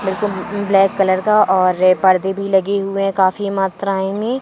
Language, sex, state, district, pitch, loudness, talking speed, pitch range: Hindi, female, Madhya Pradesh, Katni, 195 Hz, -16 LUFS, 165 wpm, 190-200 Hz